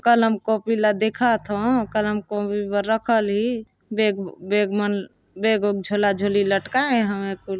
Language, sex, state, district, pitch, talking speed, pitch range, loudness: Chhattisgarhi, female, Chhattisgarh, Balrampur, 210 Hz, 160 wpm, 205-225 Hz, -22 LUFS